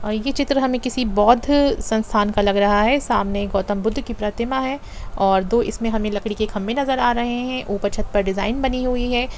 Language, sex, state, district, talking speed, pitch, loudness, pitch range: Hindi, female, Jharkhand, Jamtara, 225 wpm, 225 Hz, -20 LUFS, 205-255 Hz